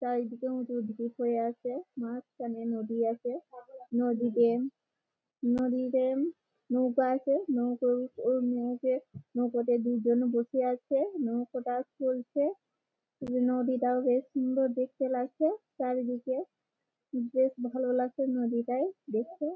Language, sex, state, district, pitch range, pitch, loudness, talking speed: Bengali, female, West Bengal, Malda, 240-260 Hz, 250 Hz, -31 LUFS, 100 wpm